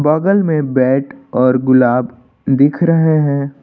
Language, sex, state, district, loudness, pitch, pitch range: Hindi, male, Uttar Pradesh, Lucknow, -13 LUFS, 140 Hz, 130-155 Hz